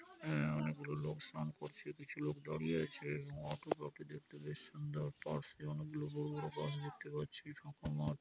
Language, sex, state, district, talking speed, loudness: Bengali, male, West Bengal, Jalpaiguri, 185 wpm, -44 LUFS